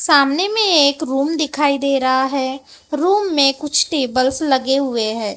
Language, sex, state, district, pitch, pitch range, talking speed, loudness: Hindi, male, Maharashtra, Gondia, 280 Hz, 265-300 Hz, 165 wpm, -16 LUFS